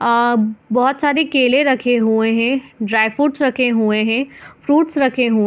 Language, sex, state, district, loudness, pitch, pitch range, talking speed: Hindi, female, Bihar, Gopalganj, -16 LUFS, 245 Hz, 225-275 Hz, 175 wpm